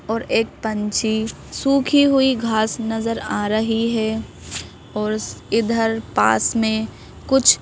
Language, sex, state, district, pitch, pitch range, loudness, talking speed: Hindi, female, Madhya Pradesh, Bhopal, 225 Hz, 215-230 Hz, -20 LUFS, 120 wpm